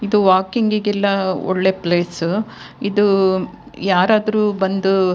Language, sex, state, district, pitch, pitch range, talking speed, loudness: Kannada, female, Karnataka, Dakshina Kannada, 195 Hz, 185-205 Hz, 105 wpm, -17 LUFS